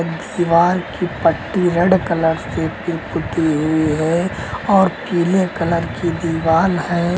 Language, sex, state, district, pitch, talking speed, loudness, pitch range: Hindi, male, Uttar Pradesh, Lucknow, 170 Hz, 135 wpm, -17 LUFS, 165-180 Hz